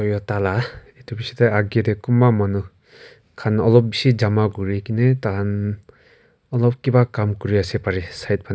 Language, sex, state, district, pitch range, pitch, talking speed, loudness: Nagamese, male, Nagaland, Kohima, 100-120 Hz, 110 Hz, 170 wpm, -20 LUFS